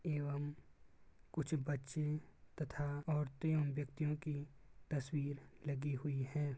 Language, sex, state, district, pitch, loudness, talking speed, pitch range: Hindi, male, Uttar Pradesh, Gorakhpur, 145 Hz, -42 LUFS, 110 wpm, 140-150 Hz